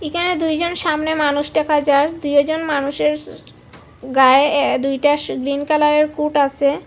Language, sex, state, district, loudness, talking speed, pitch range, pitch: Bengali, female, Assam, Hailakandi, -17 LUFS, 155 wpm, 285-310 Hz, 295 Hz